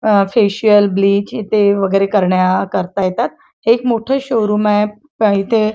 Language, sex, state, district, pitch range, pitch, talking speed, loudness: Marathi, female, Maharashtra, Chandrapur, 195-225 Hz, 210 Hz, 135 wpm, -14 LUFS